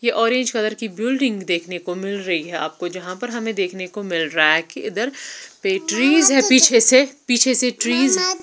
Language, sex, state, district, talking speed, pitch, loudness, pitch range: Hindi, female, Bihar, Patna, 190 wpm, 230 Hz, -18 LUFS, 185-260 Hz